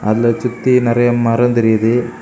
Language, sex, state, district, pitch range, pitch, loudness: Tamil, male, Tamil Nadu, Kanyakumari, 115-120 Hz, 120 Hz, -14 LUFS